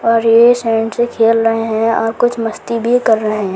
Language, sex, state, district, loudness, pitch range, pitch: Hindi, female, Rajasthan, Churu, -13 LUFS, 225-235 Hz, 225 Hz